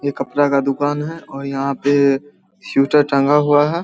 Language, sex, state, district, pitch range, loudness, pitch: Hindi, male, Bihar, Samastipur, 140-145 Hz, -17 LUFS, 145 Hz